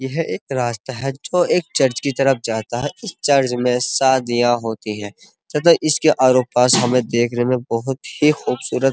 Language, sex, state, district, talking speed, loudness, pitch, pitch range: Hindi, male, Uttar Pradesh, Muzaffarnagar, 190 wpm, -18 LUFS, 130 Hz, 120-140 Hz